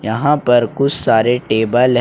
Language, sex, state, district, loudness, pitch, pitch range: Hindi, male, Jharkhand, Ranchi, -14 LUFS, 120 Hz, 110-135 Hz